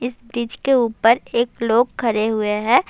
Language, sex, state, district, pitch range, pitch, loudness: Urdu, female, Bihar, Saharsa, 225-245 Hz, 235 Hz, -19 LUFS